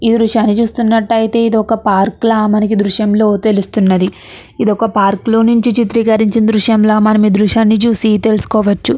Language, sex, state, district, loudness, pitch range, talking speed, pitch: Telugu, female, Andhra Pradesh, Krishna, -12 LUFS, 210-225 Hz, 155 wpm, 220 Hz